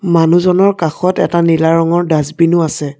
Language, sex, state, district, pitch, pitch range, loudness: Assamese, male, Assam, Sonitpur, 165 Hz, 160-175 Hz, -12 LUFS